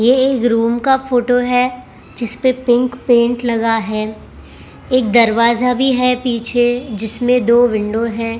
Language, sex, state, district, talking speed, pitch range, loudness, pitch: Hindi, female, Maharashtra, Mumbai Suburban, 145 wpm, 230-250 Hz, -15 LUFS, 240 Hz